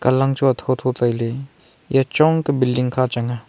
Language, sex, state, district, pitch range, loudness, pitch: Wancho, male, Arunachal Pradesh, Longding, 120-135 Hz, -19 LUFS, 130 Hz